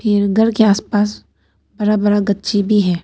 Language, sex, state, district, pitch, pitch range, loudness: Hindi, female, Arunachal Pradesh, Papum Pare, 205 Hz, 205-210 Hz, -15 LUFS